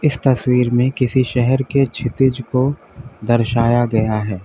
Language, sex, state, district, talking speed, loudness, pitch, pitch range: Hindi, male, Uttar Pradesh, Lalitpur, 135 wpm, -17 LUFS, 125 Hz, 120-130 Hz